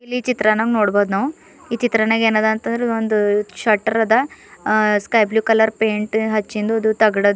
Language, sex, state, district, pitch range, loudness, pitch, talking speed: Kannada, female, Karnataka, Bidar, 215-225 Hz, -17 LUFS, 220 Hz, 155 wpm